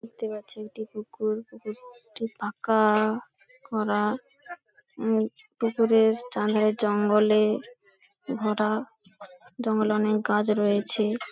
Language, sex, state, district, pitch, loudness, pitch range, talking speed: Bengali, female, West Bengal, Paschim Medinipur, 215 Hz, -26 LUFS, 210-230 Hz, 85 wpm